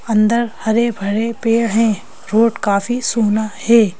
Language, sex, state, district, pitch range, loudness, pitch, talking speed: Hindi, female, Madhya Pradesh, Bhopal, 215-230 Hz, -16 LUFS, 225 Hz, 120 wpm